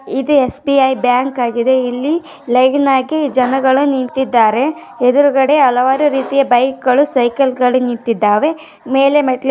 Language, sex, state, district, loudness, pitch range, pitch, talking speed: Kannada, female, Karnataka, Dharwad, -13 LUFS, 250-280 Hz, 265 Hz, 140 wpm